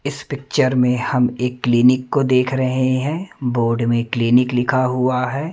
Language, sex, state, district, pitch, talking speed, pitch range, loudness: Hindi, male, Madhya Pradesh, Umaria, 125 Hz, 160 wpm, 125-130 Hz, -18 LUFS